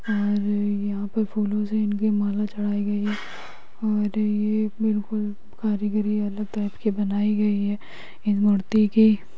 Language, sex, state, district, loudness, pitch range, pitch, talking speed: Magahi, female, Bihar, Gaya, -24 LUFS, 205-215 Hz, 210 Hz, 145 wpm